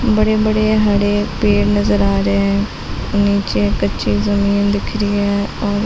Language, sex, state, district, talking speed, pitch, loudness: Hindi, female, Chhattisgarh, Bilaspur, 145 wpm, 200 Hz, -16 LUFS